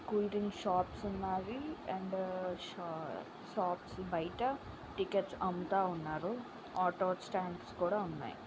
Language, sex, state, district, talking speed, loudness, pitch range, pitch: Telugu, female, Andhra Pradesh, Srikakulam, 105 wpm, -38 LUFS, 180-205 Hz, 185 Hz